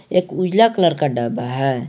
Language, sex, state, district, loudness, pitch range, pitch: Hindi, male, Jharkhand, Garhwa, -18 LUFS, 125-180 Hz, 150 Hz